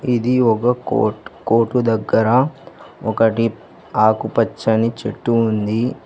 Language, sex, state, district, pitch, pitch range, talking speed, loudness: Telugu, male, Telangana, Hyderabad, 115 Hz, 110-120 Hz, 90 wpm, -18 LUFS